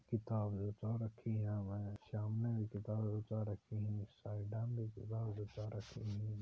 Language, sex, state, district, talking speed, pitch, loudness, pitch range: Hindi, male, Rajasthan, Churu, 160 wpm, 105 Hz, -43 LUFS, 105-110 Hz